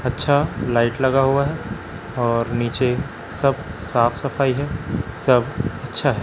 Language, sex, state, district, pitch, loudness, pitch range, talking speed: Hindi, male, Chhattisgarh, Raipur, 125 Hz, -21 LUFS, 115-140 Hz, 135 wpm